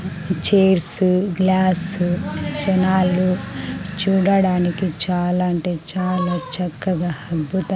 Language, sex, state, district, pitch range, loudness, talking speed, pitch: Telugu, female, Andhra Pradesh, Sri Satya Sai, 175-190 Hz, -19 LUFS, 75 wpm, 185 Hz